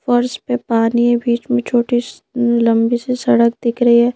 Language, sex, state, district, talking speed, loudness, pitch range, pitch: Hindi, female, Madhya Pradesh, Bhopal, 200 wpm, -16 LUFS, 235-245 Hz, 240 Hz